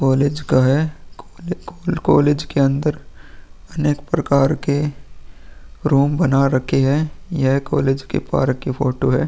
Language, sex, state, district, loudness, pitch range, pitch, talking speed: Hindi, male, Bihar, Vaishali, -18 LUFS, 130-145 Hz, 140 Hz, 140 wpm